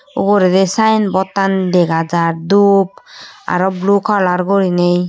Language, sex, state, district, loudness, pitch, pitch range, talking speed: Chakma, female, Tripura, Unakoti, -14 LUFS, 190 Hz, 180-200 Hz, 130 wpm